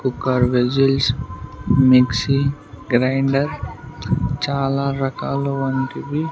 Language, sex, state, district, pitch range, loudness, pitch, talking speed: Telugu, male, Andhra Pradesh, Sri Satya Sai, 125-140 Hz, -19 LUFS, 135 Hz, 65 wpm